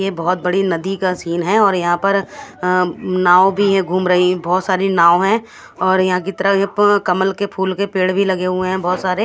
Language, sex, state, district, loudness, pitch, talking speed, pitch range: Hindi, female, Odisha, Khordha, -16 LUFS, 185 Hz, 235 wpm, 180-195 Hz